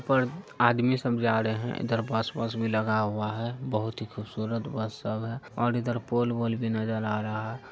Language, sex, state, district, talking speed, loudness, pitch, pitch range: Hindi, male, Bihar, Araria, 240 wpm, -29 LUFS, 115 Hz, 110-120 Hz